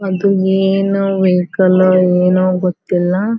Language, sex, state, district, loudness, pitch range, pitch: Kannada, female, Karnataka, Belgaum, -13 LUFS, 180-195 Hz, 185 Hz